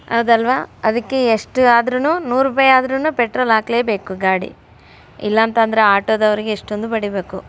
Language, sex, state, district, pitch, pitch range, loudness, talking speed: Kannada, female, Karnataka, Raichur, 225 Hz, 215-255 Hz, -16 LUFS, 120 wpm